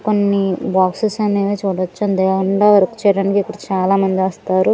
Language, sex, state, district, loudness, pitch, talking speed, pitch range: Telugu, female, Andhra Pradesh, Annamaya, -16 LUFS, 195 Hz, 125 wpm, 190-205 Hz